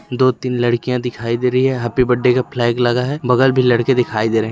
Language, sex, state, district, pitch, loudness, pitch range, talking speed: Hindi, male, Chhattisgarh, Rajnandgaon, 125 Hz, -16 LUFS, 120-130 Hz, 265 wpm